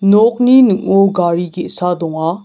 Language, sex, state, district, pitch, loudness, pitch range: Garo, male, Meghalaya, South Garo Hills, 190 Hz, -13 LUFS, 175-210 Hz